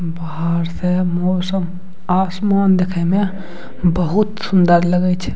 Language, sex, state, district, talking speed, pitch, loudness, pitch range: Maithili, male, Bihar, Madhepura, 110 wpm, 180 Hz, -17 LUFS, 175-190 Hz